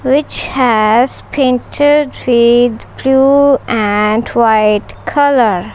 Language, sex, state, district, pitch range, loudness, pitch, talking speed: English, female, Punjab, Kapurthala, 225-270 Hz, -11 LUFS, 245 Hz, 85 wpm